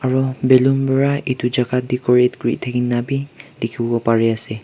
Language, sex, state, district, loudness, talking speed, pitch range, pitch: Nagamese, male, Nagaland, Kohima, -18 LUFS, 180 wpm, 120-135 Hz, 125 Hz